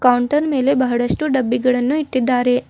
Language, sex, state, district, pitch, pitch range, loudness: Kannada, female, Karnataka, Bidar, 255 Hz, 245-275 Hz, -17 LUFS